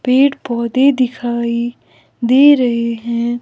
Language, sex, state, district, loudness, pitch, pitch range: Hindi, female, Himachal Pradesh, Shimla, -15 LUFS, 240 Hz, 235-260 Hz